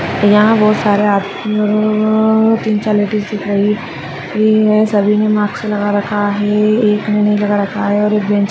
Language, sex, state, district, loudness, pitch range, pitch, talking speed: Hindi, female, Maharashtra, Nagpur, -13 LUFS, 205-215 Hz, 210 Hz, 185 wpm